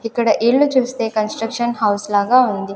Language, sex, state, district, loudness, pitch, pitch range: Telugu, female, Andhra Pradesh, Sri Satya Sai, -17 LUFS, 225 Hz, 210-245 Hz